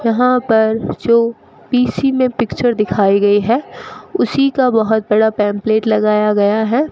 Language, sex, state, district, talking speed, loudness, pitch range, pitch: Hindi, female, Rajasthan, Bikaner, 145 wpm, -14 LUFS, 210-250 Hz, 225 Hz